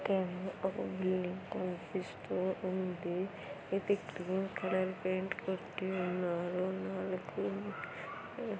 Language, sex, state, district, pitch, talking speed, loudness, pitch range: Telugu, female, Andhra Pradesh, Anantapur, 185 Hz, 85 wpm, -38 LUFS, 180-190 Hz